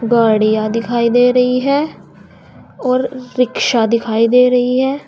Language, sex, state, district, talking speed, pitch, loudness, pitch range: Hindi, female, Uttar Pradesh, Saharanpur, 130 wpm, 245 Hz, -14 LUFS, 230-255 Hz